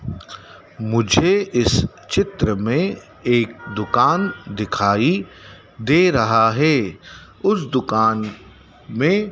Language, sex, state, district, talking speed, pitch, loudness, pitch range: Hindi, male, Madhya Pradesh, Dhar, 85 wpm, 115 Hz, -19 LUFS, 105-160 Hz